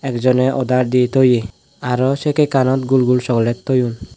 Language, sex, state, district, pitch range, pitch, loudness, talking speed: Chakma, male, Tripura, West Tripura, 125-130 Hz, 125 Hz, -16 LUFS, 175 wpm